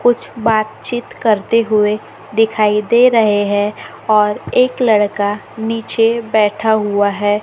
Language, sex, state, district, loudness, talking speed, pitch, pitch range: Hindi, female, Maharashtra, Gondia, -15 LUFS, 120 wpm, 215 Hz, 210-230 Hz